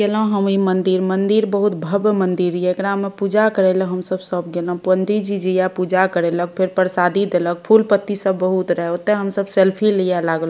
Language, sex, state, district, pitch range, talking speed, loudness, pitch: Maithili, female, Bihar, Madhepura, 180-200 Hz, 190 wpm, -18 LUFS, 185 Hz